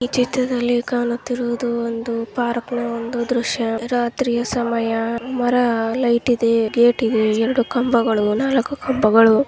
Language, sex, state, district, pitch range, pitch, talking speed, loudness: Kannada, female, Karnataka, Mysore, 230-245 Hz, 240 Hz, 100 wpm, -19 LUFS